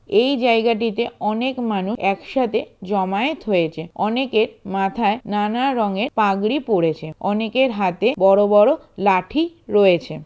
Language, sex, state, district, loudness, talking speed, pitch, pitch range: Bengali, male, West Bengal, Jalpaiguri, -19 LUFS, 110 wpm, 210 Hz, 195-245 Hz